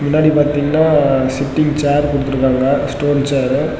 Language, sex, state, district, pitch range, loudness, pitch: Tamil, male, Tamil Nadu, Namakkal, 135-150 Hz, -15 LUFS, 145 Hz